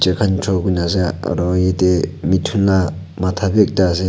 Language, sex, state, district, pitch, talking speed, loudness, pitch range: Nagamese, male, Nagaland, Kohima, 90 Hz, 190 wpm, -17 LUFS, 90-95 Hz